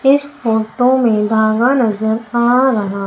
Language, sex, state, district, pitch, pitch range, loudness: Hindi, female, Madhya Pradesh, Umaria, 235 Hz, 220-255 Hz, -14 LUFS